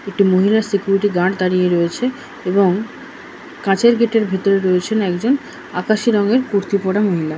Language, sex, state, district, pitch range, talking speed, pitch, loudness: Bengali, female, West Bengal, Kolkata, 185-220 Hz, 145 wpm, 200 Hz, -17 LUFS